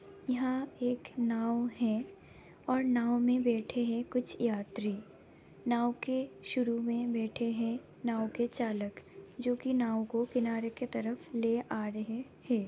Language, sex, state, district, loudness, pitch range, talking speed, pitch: Hindi, female, Bihar, Lakhisarai, -34 LUFS, 230-245 Hz, 145 wpm, 235 Hz